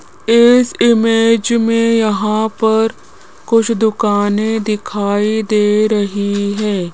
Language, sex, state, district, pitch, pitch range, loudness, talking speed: Hindi, female, Rajasthan, Jaipur, 220 Hz, 205-225 Hz, -14 LUFS, 95 wpm